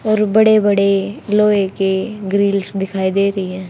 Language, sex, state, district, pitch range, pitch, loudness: Hindi, female, Haryana, Charkhi Dadri, 195-210 Hz, 200 Hz, -15 LUFS